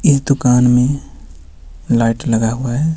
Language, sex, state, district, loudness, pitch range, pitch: Hindi, male, Jharkhand, Ranchi, -15 LUFS, 80-135 Hz, 120 Hz